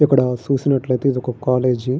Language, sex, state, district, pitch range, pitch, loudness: Telugu, male, Andhra Pradesh, Srikakulam, 125-135 Hz, 130 Hz, -19 LUFS